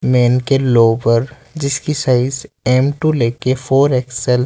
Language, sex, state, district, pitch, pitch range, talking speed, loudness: Hindi, male, Rajasthan, Jaipur, 130 Hz, 125-140 Hz, 150 wpm, -15 LUFS